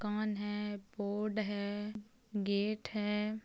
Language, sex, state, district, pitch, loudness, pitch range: Hindi, female, Jharkhand, Sahebganj, 210 Hz, -37 LUFS, 205-215 Hz